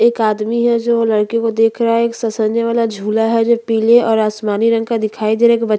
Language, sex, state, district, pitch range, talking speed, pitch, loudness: Hindi, female, Chhattisgarh, Bastar, 220-230 Hz, 280 wpm, 225 Hz, -15 LUFS